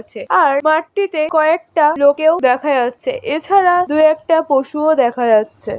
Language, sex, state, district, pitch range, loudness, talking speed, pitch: Bengali, female, West Bengal, Jhargram, 280-330 Hz, -14 LUFS, 125 wpm, 310 Hz